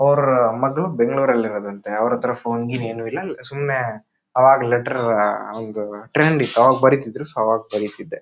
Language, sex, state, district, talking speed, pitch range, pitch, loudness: Kannada, male, Karnataka, Shimoga, 145 wpm, 110-135 Hz, 120 Hz, -19 LUFS